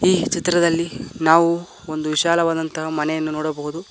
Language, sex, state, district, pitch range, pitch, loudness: Kannada, male, Karnataka, Koppal, 155-170 Hz, 165 Hz, -20 LUFS